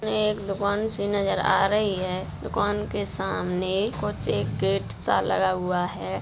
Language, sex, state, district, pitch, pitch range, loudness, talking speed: Hindi, female, Bihar, Vaishali, 200 Hz, 185-205 Hz, -26 LUFS, 175 wpm